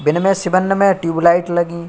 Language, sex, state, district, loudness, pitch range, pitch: Hindi, male, Uttar Pradesh, Budaun, -15 LUFS, 170-185 Hz, 175 Hz